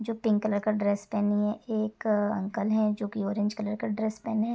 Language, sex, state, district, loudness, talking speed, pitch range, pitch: Hindi, female, Uttar Pradesh, Gorakhpur, -29 LUFS, 225 wpm, 205-220 Hz, 215 Hz